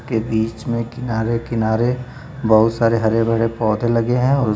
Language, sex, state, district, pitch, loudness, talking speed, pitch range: Hindi, male, Uttar Pradesh, Lucknow, 115 Hz, -18 LUFS, 155 wpm, 110-120 Hz